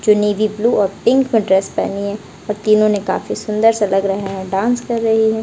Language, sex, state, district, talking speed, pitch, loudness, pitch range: Hindi, female, Bihar, Kaimur, 230 wpm, 210 Hz, -16 LUFS, 195-225 Hz